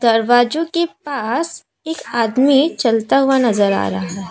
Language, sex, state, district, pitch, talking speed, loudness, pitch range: Hindi, female, Assam, Kamrup Metropolitan, 245 Hz, 155 wpm, -16 LUFS, 225-295 Hz